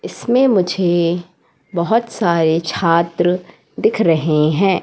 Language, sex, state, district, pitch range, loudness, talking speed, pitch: Hindi, female, Madhya Pradesh, Katni, 170-195 Hz, -16 LUFS, 100 wpm, 175 Hz